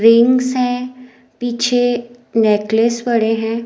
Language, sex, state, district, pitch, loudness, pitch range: Hindi, female, Himachal Pradesh, Shimla, 240 Hz, -16 LUFS, 225-245 Hz